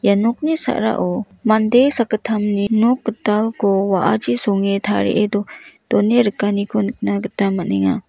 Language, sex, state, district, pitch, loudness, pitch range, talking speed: Garo, female, Meghalaya, West Garo Hills, 210 Hz, -17 LUFS, 200-225 Hz, 110 wpm